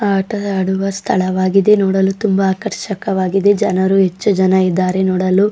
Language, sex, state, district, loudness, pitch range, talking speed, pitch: Kannada, female, Karnataka, Dakshina Kannada, -15 LUFS, 190-200 Hz, 120 wpm, 195 Hz